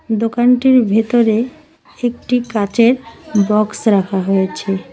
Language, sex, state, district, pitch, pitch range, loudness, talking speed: Bengali, female, West Bengal, Cooch Behar, 225 Hz, 205-245 Hz, -15 LUFS, 85 wpm